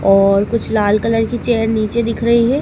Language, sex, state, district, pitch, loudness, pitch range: Hindi, female, Madhya Pradesh, Dhar, 225 Hz, -15 LUFS, 215-235 Hz